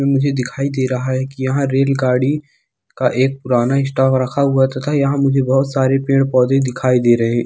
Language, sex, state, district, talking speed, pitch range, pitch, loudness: Hindi, male, Bihar, East Champaran, 200 wpm, 130-135 Hz, 135 Hz, -16 LUFS